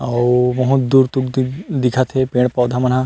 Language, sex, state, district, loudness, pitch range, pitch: Chhattisgarhi, male, Chhattisgarh, Rajnandgaon, -16 LUFS, 125-130 Hz, 130 Hz